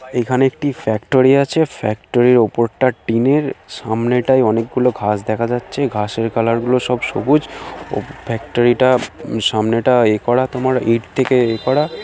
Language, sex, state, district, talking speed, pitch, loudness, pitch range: Bengali, male, West Bengal, Kolkata, 135 wpm, 120 Hz, -16 LUFS, 115-130 Hz